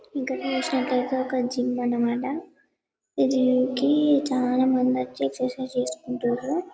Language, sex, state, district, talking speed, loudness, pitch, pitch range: Telugu, female, Telangana, Karimnagar, 105 wpm, -25 LUFS, 255 Hz, 245-270 Hz